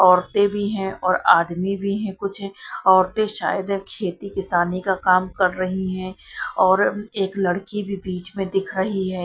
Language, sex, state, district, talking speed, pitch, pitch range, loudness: Hindi, female, Punjab, Kapurthala, 170 wpm, 190 Hz, 185-200 Hz, -21 LUFS